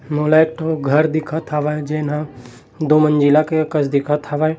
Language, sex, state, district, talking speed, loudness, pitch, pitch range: Chhattisgarhi, male, Chhattisgarh, Bilaspur, 185 wpm, -17 LUFS, 150 Hz, 150-155 Hz